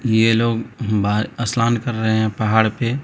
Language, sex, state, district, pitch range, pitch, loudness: Hindi, male, Bihar, Katihar, 110-120 Hz, 115 Hz, -19 LUFS